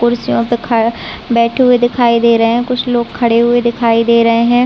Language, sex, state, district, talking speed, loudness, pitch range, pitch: Hindi, female, Chhattisgarh, Raigarh, 220 wpm, -12 LUFS, 230-240 Hz, 235 Hz